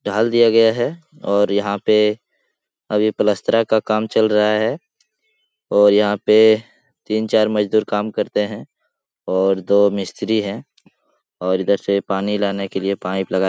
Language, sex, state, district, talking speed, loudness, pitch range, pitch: Hindi, male, Bihar, Jahanabad, 155 wpm, -18 LUFS, 100-110 Hz, 105 Hz